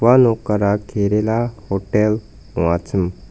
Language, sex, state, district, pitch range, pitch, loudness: Garo, male, Meghalaya, West Garo Hills, 95-110 Hz, 105 Hz, -18 LUFS